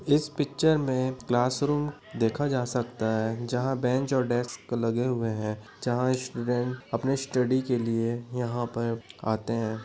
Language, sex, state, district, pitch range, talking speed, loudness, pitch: Hindi, male, Chhattisgarh, Korba, 115-130 Hz, 150 wpm, -28 LUFS, 125 Hz